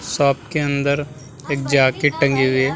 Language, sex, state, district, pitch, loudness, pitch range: Hindi, male, Bihar, Vaishali, 140 Hz, -18 LUFS, 135-145 Hz